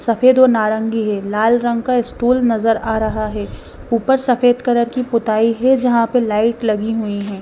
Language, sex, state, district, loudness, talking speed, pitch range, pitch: Hindi, female, Bihar, West Champaran, -16 LUFS, 195 wpm, 220-245 Hz, 230 Hz